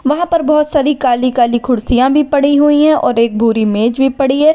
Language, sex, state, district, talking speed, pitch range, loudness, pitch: Hindi, female, Uttar Pradesh, Lalitpur, 225 wpm, 240-295 Hz, -12 LUFS, 270 Hz